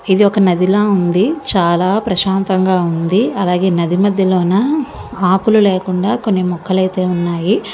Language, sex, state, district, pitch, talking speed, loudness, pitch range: Telugu, female, Andhra Pradesh, Visakhapatnam, 190 Hz, 240 wpm, -14 LUFS, 180-200 Hz